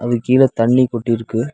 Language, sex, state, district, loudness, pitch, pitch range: Tamil, male, Tamil Nadu, Nilgiris, -15 LUFS, 120 Hz, 115-125 Hz